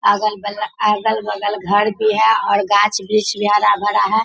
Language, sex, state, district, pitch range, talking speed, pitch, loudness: Hindi, female, Bihar, Samastipur, 205-215 Hz, 140 wpm, 210 Hz, -16 LUFS